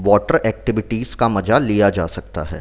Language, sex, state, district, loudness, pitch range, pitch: Hindi, male, Chhattisgarh, Rajnandgaon, -18 LUFS, 90-115 Hz, 105 Hz